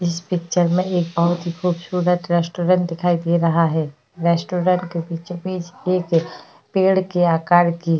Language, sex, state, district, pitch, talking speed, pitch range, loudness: Hindi, female, Uttar Pradesh, Hamirpur, 175 Hz, 155 wpm, 170-180 Hz, -20 LUFS